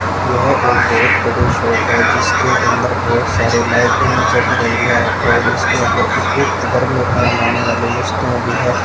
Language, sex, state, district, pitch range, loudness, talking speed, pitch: Hindi, male, Rajasthan, Bikaner, 115-120 Hz, -14 LUFS, 100 wpm, 120 Hz